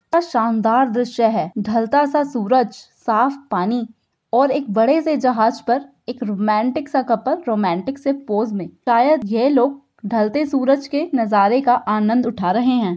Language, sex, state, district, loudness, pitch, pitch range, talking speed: Hindi, female, Uttar Pradesh, Budaun, -18 LUFS, 240 Hz, 220-270 Hz, 150 wpm